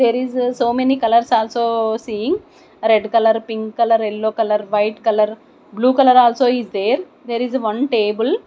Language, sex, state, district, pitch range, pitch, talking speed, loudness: English, female, Odisha, Nuapada, 220-255 Hz, 230 Hz, 170 wpm, -17 LUFS